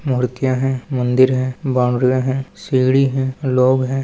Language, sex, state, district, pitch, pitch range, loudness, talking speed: Hindi, male, Rajasthan, Nagaur, 130 Hz, 130-135 Hz, -17 LUFS, 150 wpm